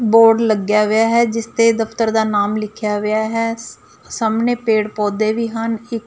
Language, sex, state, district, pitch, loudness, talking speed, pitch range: Punjabi, female, Punjab, Fazilka, 225 Hz, -17 LUFS, 190 wpm, 215-230 Hz